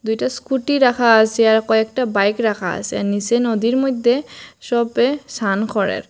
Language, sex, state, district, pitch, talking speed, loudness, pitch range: Bengali, female, Assam, Hailakandi, 225 Hz, 155 wpm, -17 LUFS, 215-245 Hz